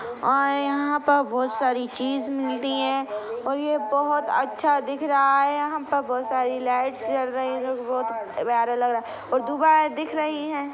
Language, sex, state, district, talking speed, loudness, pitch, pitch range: Hindi, female, Chhattisgarh, Sukma, 155 wpm, -24 LUFS, 275 Hz, 250-290 Hz